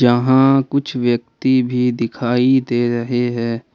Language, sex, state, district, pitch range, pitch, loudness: Hindi, male, Jharkhand, Ranchi, 120-130 Hz, 120 Hz, -17 LUFS